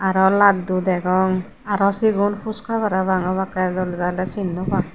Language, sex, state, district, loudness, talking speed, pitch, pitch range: Chakma, female, Tripura, Unakoti, -20 LUFS, 155 wpm, 190 Hz, 185-200 Hz